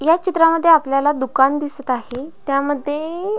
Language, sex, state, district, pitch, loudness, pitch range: Marathi, female, Maharashtra, Pune, 290 Hz, -17 LUFS, 275-330 Hz